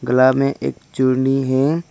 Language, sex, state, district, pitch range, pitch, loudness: Hindi, male, Arunachal Pradesh, Lower Dibang Valley, 130-135 Hz, 130 Hz, -18 LUFS